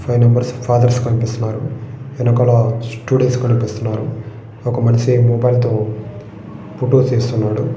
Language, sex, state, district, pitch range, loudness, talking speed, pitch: Telugu, male, Andhra Pradesh, Srikakulam, 110-125 Hz, -16 LUFS, 60 wpm, 120 Hz